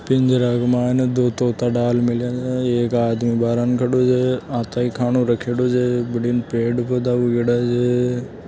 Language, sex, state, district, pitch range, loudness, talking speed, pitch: Marwari, male, Rajasthan, Churu, 120-125 Hz, -19 LUFS, 170 wpm, 120 Hz